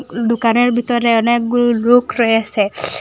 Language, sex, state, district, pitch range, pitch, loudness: Bengali, female, Assam, Hailakandi, 230-240 Hz, 235 Hz, -14 LUFS